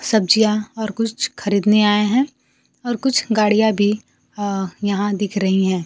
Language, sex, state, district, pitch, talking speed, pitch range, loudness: Hindi, female, Bihar, Kaimur, 210 Hz, 155 wpm, 205-220 Hz, -18 LUFS